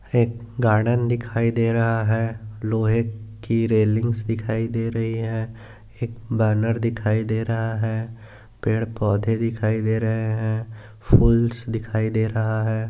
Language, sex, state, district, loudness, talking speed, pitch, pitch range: Hindi, male, Maharashtra, Aurangabad, -22 LUFS, 140 wpm, 110 Hz, 110-115 Hz